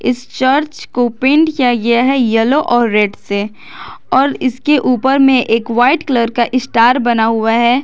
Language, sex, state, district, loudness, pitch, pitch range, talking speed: Hindi, female, Jharkhand, Garhwa, -13 LUFS, 245 Hz, 235-265 Hz, 175 wpm